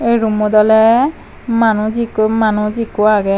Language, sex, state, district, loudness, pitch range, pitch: Chakma, female, Tripura, Dhalai, -13 LUFS, 215-230 Hz, 220 Hz